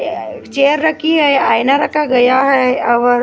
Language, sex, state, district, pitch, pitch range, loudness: Hindi, female, Maharashtra, Gondia, 275 Hz, 250-300 Hz, -13 LUFS